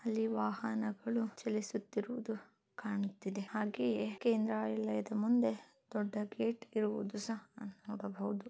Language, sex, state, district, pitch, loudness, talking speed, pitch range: Kannada, female, Karnataka, Chamarajanagar, 215 Hz, -38 LUFS, 90 wpm, 200-225 Hz